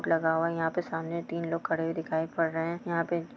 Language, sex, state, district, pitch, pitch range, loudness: Hindi, female, Chhattisgarh, Bilaspur, 165 Hz, 165-170 Hz, -30 LUFS